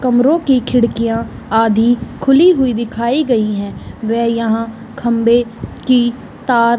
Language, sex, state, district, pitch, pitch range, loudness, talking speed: Hindi, female, Bihar, East Champaran, 235 Hz, 230-255 Hz, -14 LUFS, 135 wpm